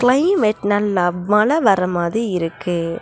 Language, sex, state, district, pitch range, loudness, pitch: Tamil, female, Tamil Nadu, Nilgiris, 175-215 Hz, -18 LUFS, 200 Hz